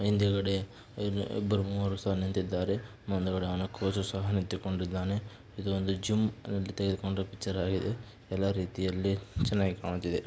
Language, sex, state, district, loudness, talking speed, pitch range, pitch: Kannada, male, Karnataka, Dakshina Kannada, -32 LUFS, 130 wpm, 95-100 Hz, 100 Hz